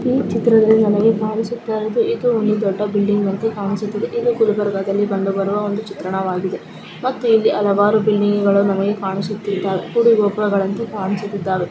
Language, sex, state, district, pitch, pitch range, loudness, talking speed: Kannada, female, Karnataka, Gulbarga, 205 Hz, 200-220 Hz, -18 LUFS, 135 wpm